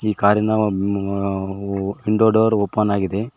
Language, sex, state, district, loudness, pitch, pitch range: Kannada, male, Karnataka, Koppal, -19 LUFS, 100 Hz, 100-105 Hz